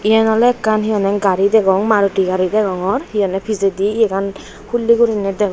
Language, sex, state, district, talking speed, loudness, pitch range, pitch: Chakma, female, Tripura, Unakoti, 185 wpm, -16 LUFS, 195-220 Hz, 205 Hz